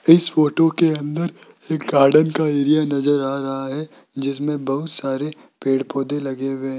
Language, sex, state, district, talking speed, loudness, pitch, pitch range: Hindi, male, Rajasthan, Jaipur, 175 wpm, -20 LUFS, 145 Hz, 135-155 Hz